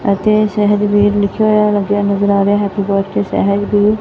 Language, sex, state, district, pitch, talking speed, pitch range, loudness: Punjabi, female, Punjab, Fazilka, 205 Hz, 180 wpm, 200-210 Hz, -13 LUFS